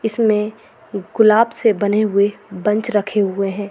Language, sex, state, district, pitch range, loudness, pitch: Hindi, female, Chhattisgarh, Balrampur, 200-220 Hz, -17 LUFS, 210 Hz